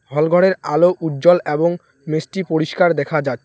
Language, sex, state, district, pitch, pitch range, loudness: Bengali, male, West Bengal, Alipurduar, 160 Hz, 150-175 Hz, -17 LUFS